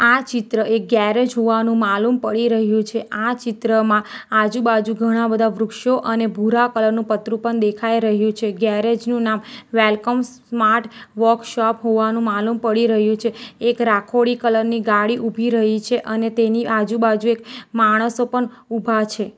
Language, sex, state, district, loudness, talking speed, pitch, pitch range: Gujarati, female, Gujarat, Valsad, -18 LUFS, 155 wpm, 225 Hz, 220-235 Hz